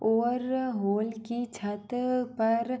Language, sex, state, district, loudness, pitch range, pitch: Hindi, female, Jharkhand, Sahebganj, -30 LUFS, 220-250 Hz, 235 Hz